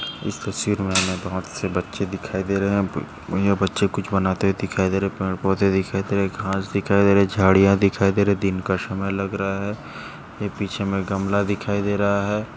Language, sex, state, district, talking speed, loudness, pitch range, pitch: Hindi, male, Maharashtra, Dhule, 240 wpm, -22 LUFS, 95-100 Hz, 100 Hz